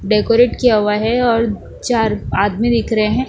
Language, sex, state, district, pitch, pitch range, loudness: Hindi, female, Bihar, West Champaran, 225 Hz, 210-235 Hz, -15 LUFS